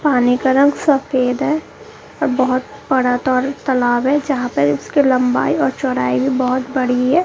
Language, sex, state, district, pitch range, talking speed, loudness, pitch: Hindi, female, Bihar, Kaimur, 250-275 Hz, 165 wpm, -16 LUFS, 260 Hz